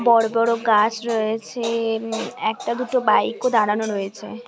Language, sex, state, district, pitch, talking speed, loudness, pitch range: Bengali, female, West Bengal, Jhargram, 225 Hz, 145 wpm, -21 LUFS, 220-235 Hz